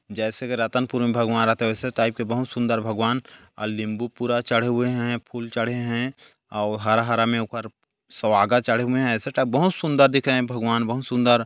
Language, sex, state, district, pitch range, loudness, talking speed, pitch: Hindi, male, Chhattisgarh, Korba, 115-125 Hz, -23 LUFS, 220 wpm, 120 Hz